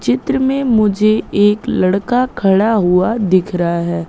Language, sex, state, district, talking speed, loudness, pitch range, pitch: Hindi, female, Madhya Pradesh, Katni, 145 wpm, -14 LUFS, 180-225 Hz, 200 Hz